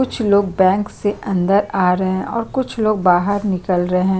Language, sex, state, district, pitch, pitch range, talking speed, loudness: Hindi, female, Chhattisgarh, Sukma, 195 Hz, 185-210 Hz, 230 wpm, -17 LUFS